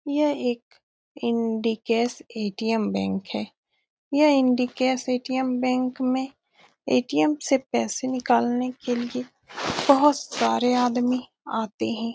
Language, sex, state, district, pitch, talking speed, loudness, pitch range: Hindi, female, Bihar, Saran, 245 Hz, 115 wpm, -24 LUFS, 225-260 Hz